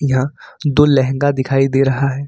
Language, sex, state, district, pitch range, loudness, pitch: Hindi, male, Jharkhand, Ranchi, 135-145 Hz, -15 LUFS, 135 Hz